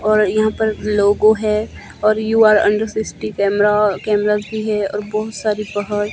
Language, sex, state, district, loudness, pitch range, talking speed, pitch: Hindi, female, Himachal Pradesh, Shimla, -17 LUFS, 205-215 Hz, 185 wpm, 210 Hz